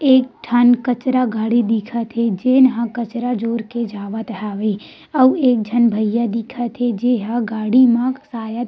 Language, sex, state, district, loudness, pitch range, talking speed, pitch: Chhattisgarhi, female, Chhattisgarh, Rajnandgaon, -18 LUFS, 225-245 Hz, 165 wpm, 235 Hz